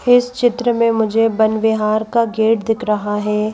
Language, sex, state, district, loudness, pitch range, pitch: Hindi, female, Madhya Pradesh, Bhopal, -16 LUFS, 215-230 Hz, 220 Hz